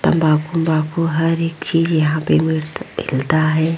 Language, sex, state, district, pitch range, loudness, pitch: Hindi, female, Bihar, Vaishali, 155-165 Hz, -18 LUFS, 160 Hz